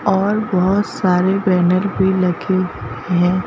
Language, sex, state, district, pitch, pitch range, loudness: Hindi, female, Madhya Pradesh, Bhopal, 185 Hz, 180-195 Hz, -17 LUFS